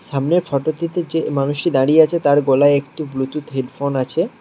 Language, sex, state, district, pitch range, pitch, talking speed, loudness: Bengali, male, West Bengal, Alipurduar, 140-165 Hz, 145 Hz, 175 wpm, -18 LUFS